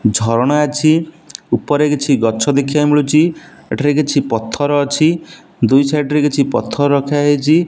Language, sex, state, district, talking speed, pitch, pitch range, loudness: Odia, male, Odisha, Nuapada, 140 wpm, 145 Hz, 140-150 Hz, -14 LUFS